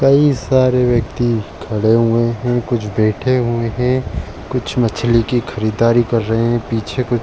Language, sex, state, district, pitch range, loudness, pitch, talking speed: Hindi, male, Uttar Pradesh, Jalaun, 110-125 Hz, -16 LUFS, 120 Hz, 160 wpm